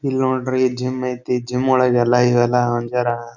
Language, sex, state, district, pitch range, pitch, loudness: Kannada, male, Karnataka, Bijapur, 120-130 Hz, 125 Hz, -18 LUFS